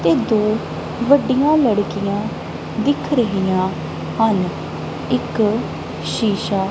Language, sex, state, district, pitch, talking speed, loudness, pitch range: Punjabi, female, Punjab, Kapurthala, 215 Hz, 80 wpm, -19 LUFS, 200-240 Hz